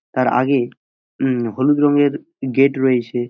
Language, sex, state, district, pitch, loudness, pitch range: Bengali, male, West Bengal, Purulia, 130 Hz, -17 LUFS, 120-140 Hz